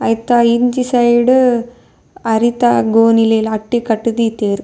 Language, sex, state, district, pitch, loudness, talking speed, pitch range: Tulu, female, Karnataka, Dakshina Kannada, 230 Hz, -13 LUFS, 105 wpm, 225-240 Hz